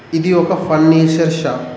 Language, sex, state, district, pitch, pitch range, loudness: Telugu, male, Telangana, Mahabubabad, 160 Hz, 155-165 Hz, -13 LUFS